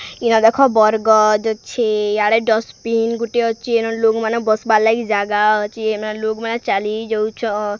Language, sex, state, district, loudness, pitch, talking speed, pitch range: Odia, female, Odisha, Sambalpur, -17 LUFS, 220 Hz, 145 wpm, 215-225 Hz